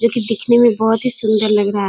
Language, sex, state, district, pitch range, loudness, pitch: Hindi, female, Bihar, Kishanganj, 215-235 Hz, -15 LUFS, 225 Hz